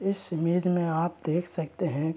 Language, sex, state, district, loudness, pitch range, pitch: Hindi, male, Chhattisgarh, Raigarh, -28 LUFS, 165-180 Hz, 170 Hz